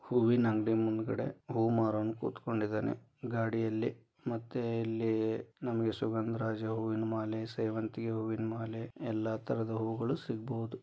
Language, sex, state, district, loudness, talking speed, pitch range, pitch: Kannada, male, Karnataka, Dharwad, -35 LUFS, 105 wpm, 110-115 Hz, 110 Hz